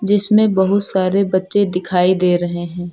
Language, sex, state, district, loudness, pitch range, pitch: Hindi, female, Uttar Pradesh, Lucknow, -15 LUFS, 180-200 Hz, 190 Hz